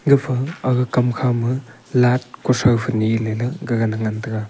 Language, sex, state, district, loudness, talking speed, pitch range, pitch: Wancho, male, Arunachal Pradesh, Longding, -20 LUFS, 160 wpm, 115-125 Hz, 125 Hz